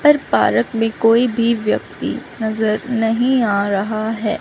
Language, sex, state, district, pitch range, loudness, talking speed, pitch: Hindi, female, Chandigarh, Chandigarh, 215-235 Hz, -17 LUFS, 150 wpm, 225 Hz